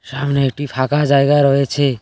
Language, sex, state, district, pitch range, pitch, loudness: Bengali, male, West Bengal, Cooch Behar, 135-145 Hz, 140 Hz, -15 LUFS